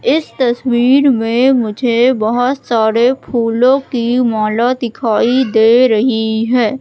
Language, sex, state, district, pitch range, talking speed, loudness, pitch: Hindi, female, Madhya Pradesh, Katni, 225-255 Hz, 115 wpm, -13 LUFS, 245 Hz